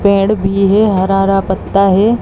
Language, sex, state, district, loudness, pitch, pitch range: Chhattisgarhi, female, Chhattisgarh, Bilaspur, -12 LUFS, 195 Hz, 195-205 Hz